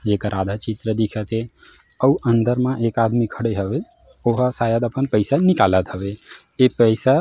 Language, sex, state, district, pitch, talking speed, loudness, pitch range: Chhattisgarhi, male, Chhattisgarh, Jashpur, 115 Hz, 185 wpm, -20 LUFS, 105-125 Hz